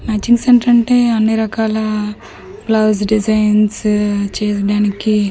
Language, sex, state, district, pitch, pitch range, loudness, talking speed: Telugu, female, Andhra Pradesh, Manyam, 215 Hz, 210-225 Hz, -14 LUFS, 90 wpm